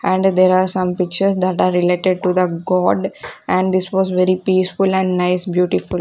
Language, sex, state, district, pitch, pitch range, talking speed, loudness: English, female, Punjab, Kapurthala, 185 Hz, 180-185 Hz, 200 wpm, -17 LUFS